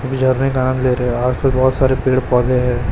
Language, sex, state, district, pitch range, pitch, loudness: Hindi, male, Chhattisgarh, Raipur, 125-130 Hz, 130 Hz, -16 LUFS